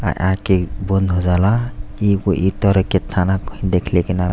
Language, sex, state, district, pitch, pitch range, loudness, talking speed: Bhojpuri, male, Uttar Pradesh, Deoria, 95 Hz, 90-100 Hz, -18 LUFS, 235 wpm